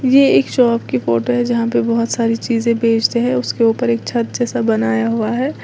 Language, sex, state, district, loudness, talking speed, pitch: Hindi, female, Uttar Pradesh, Lalitpur, -16 LUFS, 225 wpm, 230 Hz